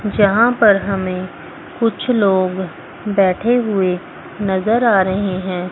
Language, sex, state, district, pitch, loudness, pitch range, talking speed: Hindi, female, Chandigarh, Chandigarh, 195 Hz, -16 LUFS, 185-225 Hz, 115 wpm